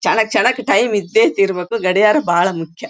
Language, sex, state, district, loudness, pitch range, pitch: Kannada, female, Karnataka, Bellary, -15 LUFS, 175-210 Hz, 190 Hz